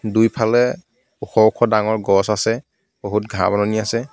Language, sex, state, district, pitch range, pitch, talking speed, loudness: Assamese, male, Assam, Kamrup Metropolitan, 105-115 Hz, 110 Hz, 145 wpm, -18 LUFS